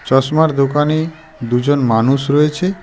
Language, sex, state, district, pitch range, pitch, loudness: Bengali, male, West Bengal, Darjeeling, 135-160 Hz, 145 Hz, -15 LUFS